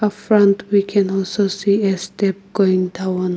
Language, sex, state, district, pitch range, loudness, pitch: English, female, Nagaland, Kohima, 190-200 Hz, -17 LUFS, 195 Hz